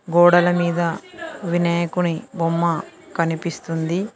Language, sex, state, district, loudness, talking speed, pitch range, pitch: Telugu, female, Telangana, Mahabubabad, -20 LUFS, 70 wpm, 165-175 Hz, 170 Hz